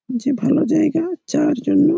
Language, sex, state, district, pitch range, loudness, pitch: Bengali, male, West Bengal, Malda, 275-315 Hz, -18 LUFS, 300 Hz